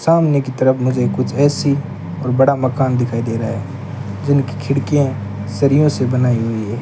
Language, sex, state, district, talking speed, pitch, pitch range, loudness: Hindi, male, Rajasthan, Bikaner, 175 wpm, 130 Hz, 115-140 Hz, -17 LUFS